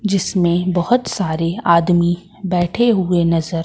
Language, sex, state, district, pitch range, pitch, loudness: Hindi, female, Madhya Pradesh, Katni, 170-195 Hz, 175 Hz, -17 LUFS